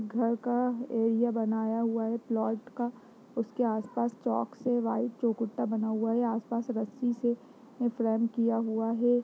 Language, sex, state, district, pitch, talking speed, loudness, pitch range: Hindi, female, Bihar, Jamui, 235 Hz, 175 wpm, -31 LUFS, 225-240 Hz